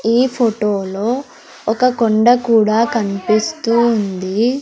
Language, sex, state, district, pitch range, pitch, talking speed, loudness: Telugu, female, Andhra Pradesh, Sri Satya Sai, 215-240 Hz, 225 Hz, 90 wpm, -16 LUFS